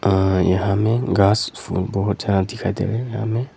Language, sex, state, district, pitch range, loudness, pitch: Hindi, male, Arunachal Pradesh, Longding, 95-115 Hz, -20 LUFS, 100 Hz